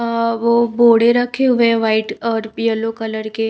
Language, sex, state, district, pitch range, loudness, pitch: Hindi, female, Bihar, Kaimur, 225-235 Hz, -16 LUFS, 230 Hz